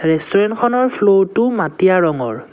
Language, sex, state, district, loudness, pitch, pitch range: Assamese, male, Assam, Kamrup Metropolitan, -15 LUFS, 195 Hz, 160-230 Hz